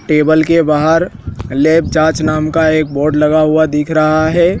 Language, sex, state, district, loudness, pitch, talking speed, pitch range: Hindi, male, Madhya Pradesh, Dhar, -12 LUFS, 155 Hz, 185 wpm, 150-160 Hz